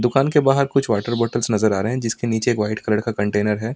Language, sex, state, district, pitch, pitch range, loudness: Hindi, male, Delhi, New Delhi, 115 Hz, 105-125 Hz, -20 LUFS